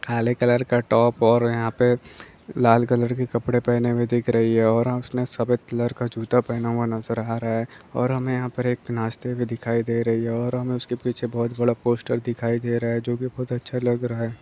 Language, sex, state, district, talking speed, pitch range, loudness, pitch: Hindi, male, Maharashtra, Solapur, 235 wpm, 115-125 Hz, -23 LUFS, 120 Hz